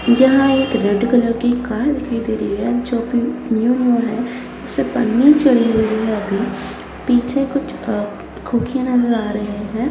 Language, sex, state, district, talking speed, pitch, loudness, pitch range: Hindi, female, Bihar, Lakhisarai, 165 wpm, 240 Hz, -17 LUFS, 225-255 Hz